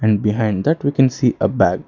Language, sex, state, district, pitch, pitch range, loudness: English, male, Karnataka, Bangalore, 110 Hz, 105-130 Hz, -17 LUFS